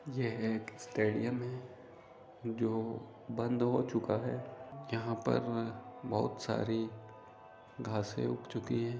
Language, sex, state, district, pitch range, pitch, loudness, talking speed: Hindi, male, West Bengal, Jalpaiguri, 110-125 Hz, 115 Hz, -36 LUFS, 115 wpm